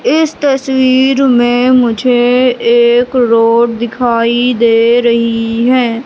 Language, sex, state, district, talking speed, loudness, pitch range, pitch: Hindi, female, Madhya Pradesh, Katni, 100 wpm, -10 LUFS, 235-255 Hz, 240 Hz